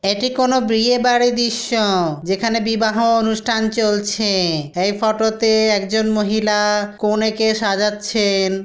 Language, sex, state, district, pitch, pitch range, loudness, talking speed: Bengali, male, West Bengal, Dakshin Dinajpur, 220 Hz, 205-225 Hz, -17 LUFS, 110 wpm